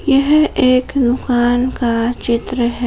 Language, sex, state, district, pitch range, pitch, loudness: Hindi, female, Jharkhand, Palamu, 240-265 Hz, 245 Hz, -15 LUFS